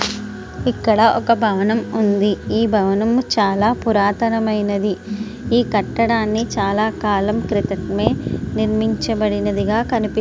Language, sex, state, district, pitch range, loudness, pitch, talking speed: Telugu, female, Andhra Pradesh, Srikakulam, 205-225 Hz, -18 LUFS, 215 Hz, 90 wpm